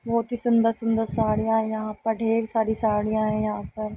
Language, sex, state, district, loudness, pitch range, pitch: Hindi, female, Uttar Pradesh, Muzaffarnagar, -24 LUFS, 215-225 Hz, 225 Hz